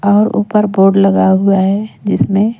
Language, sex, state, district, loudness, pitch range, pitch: Hindi, female, Madhya Pradesh, Umaria, -12 LUFS, 195-210 Hz, 200 Hz